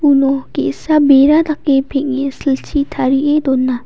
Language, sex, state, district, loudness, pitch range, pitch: Garo, female, Meghalaya, West Garo Hills, -14 LUFS, 270-295 Hz, 275 Hz